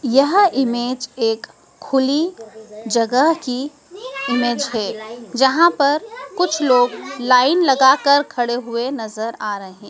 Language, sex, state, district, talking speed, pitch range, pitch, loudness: Hindi, female, Madhya Pradesh, Dhar, 115 wpm, 235-290 Hz, 255 Hz, -17 LUFS